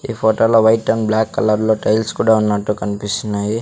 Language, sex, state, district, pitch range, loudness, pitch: Telugu, male, Andhra Pradesh, Sri Satya Sai, 105-110 Hz, -16 LUFS, 110 Hz